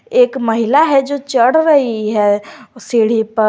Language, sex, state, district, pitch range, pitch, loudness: Hindi, female, Jharkhand, Garhwa, 220-285 Hz, 240 Hz, -13 LUFS